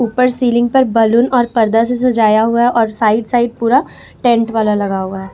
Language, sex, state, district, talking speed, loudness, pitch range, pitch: Hindi, female, Jharkhand, Ranchi, 215 wpm, -13 LUFS, 220-245 Hz, 235 Hz